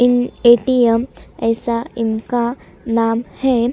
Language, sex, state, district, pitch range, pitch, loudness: Hindi, female, Chhattisgarh, Sukma, 230-245 Hz, 235 Hz, -17 LUFS